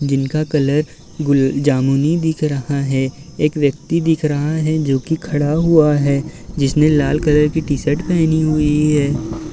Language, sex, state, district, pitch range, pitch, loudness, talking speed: Hindi, male, Uttar Pradesh, Varanasi, 140-155 Hz, 150 Hz, -16 LUFS, 145 wpm